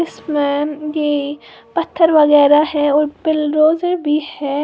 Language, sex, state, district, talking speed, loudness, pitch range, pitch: Hindi, female, Uttar Pradesh, Lalitpur, 105 wpm, -15 LUFS, 295-310 Hz, 300 Hz